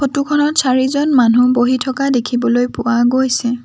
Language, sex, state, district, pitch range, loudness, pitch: Assamese, female, Assam, Sonitpur, 245-275 Hz, -14 LUFS, 255 Hz